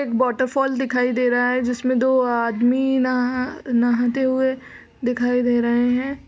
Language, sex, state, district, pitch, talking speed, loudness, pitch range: Hindi, female, Uttar Pradesh, Budaun, 250 Hz, 155 wpm, -20 LUFS, 245-260 Hz